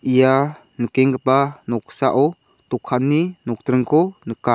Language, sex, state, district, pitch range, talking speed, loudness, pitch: Garo, male, Meghalaya, South Garo Hills, 120-145 Hz, 80 wpm, -19 LUFS, 130 Hz